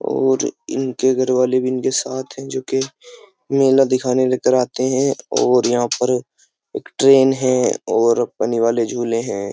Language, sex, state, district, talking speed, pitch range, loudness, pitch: Hindi, male, Uttar Pradesh, Jyotiba Phule Nagar, 165 wpm, 120-130 Hz, -18 LUFS, 130 Hz